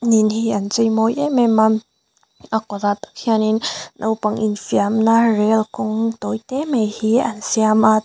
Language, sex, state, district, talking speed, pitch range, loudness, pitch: Mizo, female, Mizoram, Aizawl, 170 wpm, 215-230 Hz, -18 LUFS, 220 Hz